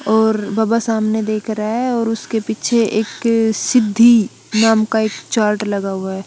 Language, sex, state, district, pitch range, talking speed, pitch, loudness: Hindi, female, Chandigarh, Chandigarh, 215-230 Hz, 170 wpm, 220 Hz, -16 LUFS